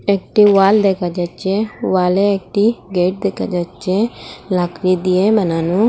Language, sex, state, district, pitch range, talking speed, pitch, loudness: Bengali, female, Assam, Hailakandi, 180-205 Hz, 120 wpm, 190 Hz, -16 LUFS